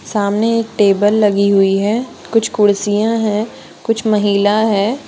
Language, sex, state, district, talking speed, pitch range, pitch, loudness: Hindi, female, Jharkhand, Deoghar, 140 wpm, 205-225 Hz, 210 Hz, -14 LUFS